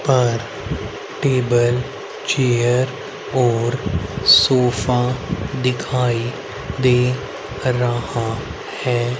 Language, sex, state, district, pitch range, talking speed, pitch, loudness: Hindi, male, Haryana, Rohtak, 120-130 Hz, 60 wpm, 125 Hz, -19 LUFS